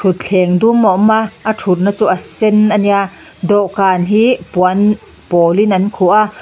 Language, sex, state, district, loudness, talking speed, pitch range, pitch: Mizo, female, Mizoram, Aizawl, -12 LUFS, 185 wpm, 185-215 Hz, 200 Hz